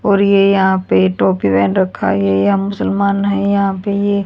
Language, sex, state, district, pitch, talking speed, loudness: Hindi, female, Haryana, Charkhi Dadri, 195 Hz, 195 wpm, -14 LUFS